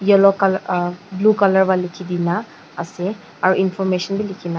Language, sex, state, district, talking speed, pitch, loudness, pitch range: Nagamese, female, Nagaland, Dimapur, 185 wpm, 190 Hz, -18 LUFS, 175-195 Hz